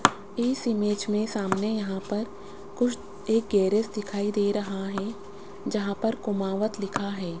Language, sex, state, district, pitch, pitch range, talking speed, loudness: Hindi, female, Rajasthan, Jaipur, 205 Hz, 200-215 Hz, 145 wpm, -28 LUFS